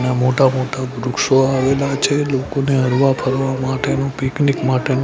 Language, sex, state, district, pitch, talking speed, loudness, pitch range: Gujarati, male, Gujarat, Gandhinagar, 135 Hz, 145 wpm, -17 LUFS, 130-135 Hz